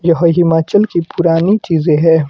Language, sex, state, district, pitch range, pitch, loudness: Hindi, male, Himachal Pradesh, Shimla, 165-175 Hz, 165 Hz, -12 LUFS